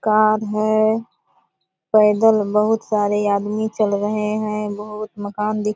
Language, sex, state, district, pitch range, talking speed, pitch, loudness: Hindi, female, Bihar, Purnia, 210-215 Hz, 135 wpm, 210 Hz, -19 LUFS